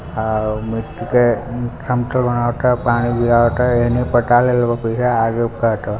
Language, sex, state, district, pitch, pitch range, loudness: Hindi, male, Bihar, Gopalganj, 120 Hz, 115-120 Hz, -17 LUFS